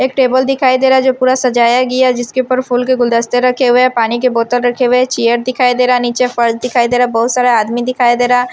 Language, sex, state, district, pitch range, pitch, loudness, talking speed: Hindi, female, Himachal Pradesh, Shimla, 240-255 Hz, 250 Hz, -12 LUFS, 290 wpm